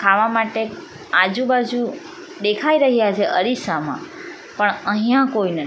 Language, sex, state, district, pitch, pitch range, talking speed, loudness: Gujarati, female, Gujarat, Valsad, 230 Hz, 205-275 Hz, 115 wpm, -19 LUFS